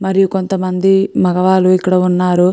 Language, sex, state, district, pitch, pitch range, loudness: Telugu, female, Andhra Pradesh, Guntur, 185 Hz, 180-190 Hz, -13 LUFS